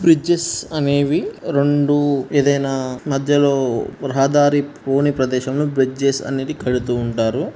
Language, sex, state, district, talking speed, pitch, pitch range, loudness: Telugu, male, Telangana, Nalgonda, 95 wpm, 140 Hz, 135-145 Hz, -18 LUFS